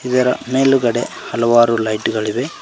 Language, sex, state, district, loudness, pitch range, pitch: Kannada, male, Karnataka, Koppal, -16 LUFS, 115-125 Hz, 120 Hz